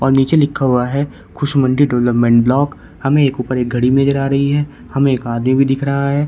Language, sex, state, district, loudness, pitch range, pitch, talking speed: Hindi, male, Uttar Pradesh, Shamli, -15 LUFS, 125-140 Hz, 135 Hz, 230 wpm